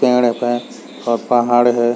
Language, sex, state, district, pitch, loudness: Hindi, male, Chhattisgarh, Sarguja, 120 Hz, -16 LUFS